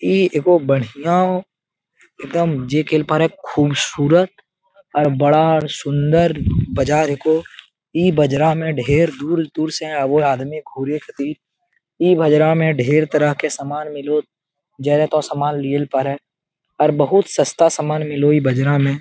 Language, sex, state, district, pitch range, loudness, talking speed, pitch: Hindi, male, Bihar, Jamui, 145-165 Hz, -17 LUFS, 140 wpm, 155 Hz